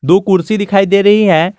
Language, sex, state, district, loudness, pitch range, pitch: Hindi, male, Jharkhand, Garhwa, -11 LUFS, 185-205 Hz, 195 Hz